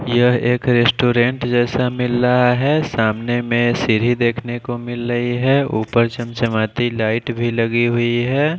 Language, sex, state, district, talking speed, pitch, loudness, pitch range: Hindi, male, Bihar, Katihar, 155 wpm, 120 Hz, -17 LUFS, 120-125 Hz